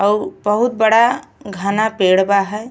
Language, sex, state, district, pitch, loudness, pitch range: Bhojpuri, female, Uttar Pradesh, Ghazipur, 210 Hz, -15 LUFS, 200-220 Hz